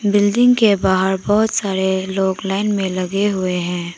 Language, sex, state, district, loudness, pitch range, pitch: Hindi, female, Arunachal Pradesh, Papum Pare, -17 LUFS, 185-205 Hz, 195 Hz